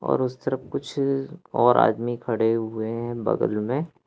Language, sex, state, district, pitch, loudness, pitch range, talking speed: Hindi, male, Madhya Pradesh, Katni, 120 Hz, -24 LUFS, 115-135 Hz, 160 wpm